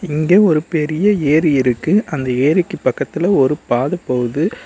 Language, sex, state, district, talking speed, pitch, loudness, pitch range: Tamil, male, Tamil Nadu, Nilgiris, 140 wpm, 155 Hz, -16 LUFS, 140-180 Hz